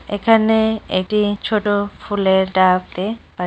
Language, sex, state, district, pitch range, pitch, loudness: Bengali, female, West Bengal, North 24 Parganas, 190-215 Hz, 205 Hz, -17 LUFS